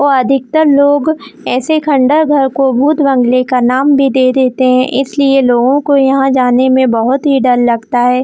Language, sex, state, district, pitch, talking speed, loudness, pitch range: Hindi, female, Jharkhand, Jamtara, 270 Hz, 180 wpm, -10 LUFS, 255-280 Hz